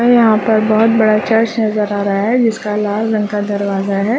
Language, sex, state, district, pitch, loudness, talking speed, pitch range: Hindi, female, Chhattisgarh, Raigarh, 215 Hz, -14 LUFS, 230 wpm, 205-225 Hz